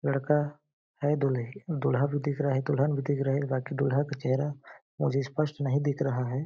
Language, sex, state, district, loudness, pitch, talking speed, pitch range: Hindi, male, Chhattisgarh, Balrampur, -29 LUFS, 140 Hz, 205 wpm, 135-145 Hz